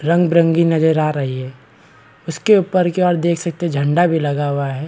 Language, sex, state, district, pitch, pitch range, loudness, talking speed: Hindi, male, Bihar, East Champaran, 165 Hz, 145-170 Hz, -16 LUFS, 220 wpm